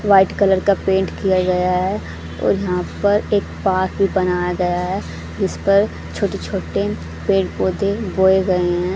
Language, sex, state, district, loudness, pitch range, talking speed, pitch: Hindi, female, Haryana, Charkhi Dadri, -18 LUFS, 180-195 Hz, 165 wpm, 190 Hz